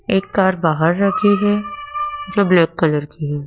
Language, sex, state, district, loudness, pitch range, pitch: Hindi, female, Madhya Pradesh, Dhar, -17 LUFS, 160-205 Hz, 195 Hz